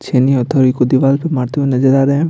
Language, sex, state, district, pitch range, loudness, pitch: Hindi, male, Bihar, Patna, 130-140 Hz, -13 LUFS, 135 Hz